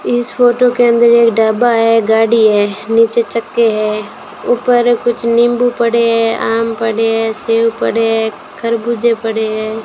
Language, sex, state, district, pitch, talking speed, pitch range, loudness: Hindi, female, Rajasthan, Bikaner, 230 Hz, 160 wpm, 225-235 Hz, -12 LUFS